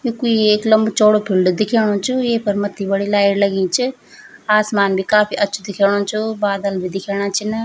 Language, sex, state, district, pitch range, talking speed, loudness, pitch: Garhwali, female, Uttarakhand, Tehri Garhwal, 200-220 Hz, 190 wpm, -17 LUFS, 210 Hz